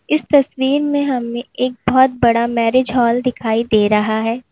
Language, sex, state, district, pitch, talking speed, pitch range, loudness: Hindi, female, Uttar Pradesh, Lalitpur, 245 Hz, 175 wpm, 230-260 Hz, -16 LUFS